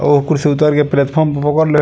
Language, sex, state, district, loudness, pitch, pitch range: Bhojpuri, male, Bihar, East Champaran, -14 LUFS, 150 Hz, 145-155 Hz